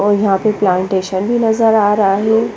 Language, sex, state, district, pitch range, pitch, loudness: Hindi, female, Chandigarh, Chandigarh, 195-220 Hz, 205 Hz, -14 LUFS